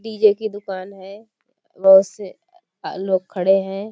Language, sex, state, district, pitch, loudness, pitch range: Hindi, female, Uttar Pradesh, Budaun, 195 Hz, -18 LUFS, 190-215 Hz